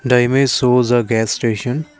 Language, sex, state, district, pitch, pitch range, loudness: English, male, Assam, Kamrup Metropolitan, 125 Hz, 115-130 Hz, -16 LUFS